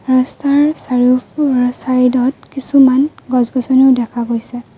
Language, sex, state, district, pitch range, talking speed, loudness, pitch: Assamese, female, Assam, Kamrup Metropolitan, 250-270 Hz, 115 wpm, -14 LUFS, 255 Hz